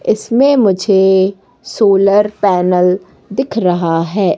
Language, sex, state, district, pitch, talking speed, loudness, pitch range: Hindi, female, Madhya Pradesh, Katni, 195 Hz, 95 wpm, -12 LUFS, 185-210 Hz